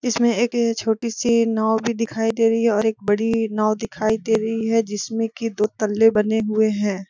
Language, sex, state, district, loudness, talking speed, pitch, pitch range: Hindi, female, Jharkhand, Sahebganj, -20 LUFS, 220 wpm, 225 Hz, 215-230 Hz